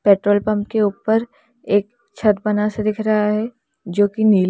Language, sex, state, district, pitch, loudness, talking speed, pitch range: Hindi, female, Uttar Pradesh, Lalitpur, 215 Hz, -19 LUFS, 185 wpm, 205-225 Hz